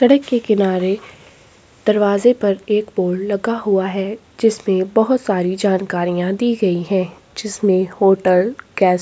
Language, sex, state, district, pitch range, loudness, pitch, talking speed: Hindi, female, Chhattisgarh, Korba, 185-215 Hz, -17 LUFS, 200 Hz, 135 wpm